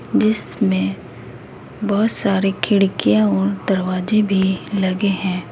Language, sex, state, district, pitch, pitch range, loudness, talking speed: Hindi, female, Uttar Pradesh, Saharanpur, 190 Hz, 175-200 Hz, -18 LUFS, 100 wpm